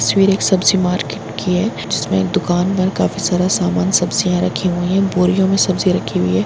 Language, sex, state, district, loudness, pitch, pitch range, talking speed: Hindi, female, Bihar, Gopalganj, -16 LUFS, 185 Hz, 180-190 Hz, 215 wpm